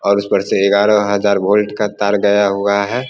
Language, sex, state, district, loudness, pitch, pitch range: Hindi, male, Bihar, Vaishali, -14 LUFS, 100 Hz, 100-105 Hz